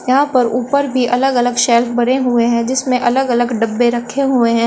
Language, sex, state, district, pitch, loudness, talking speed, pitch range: Hindi, female, Uttar Pradesh, Shamli, 245 Hz, -14 LUFS, 195 wpm, 240-260 Hz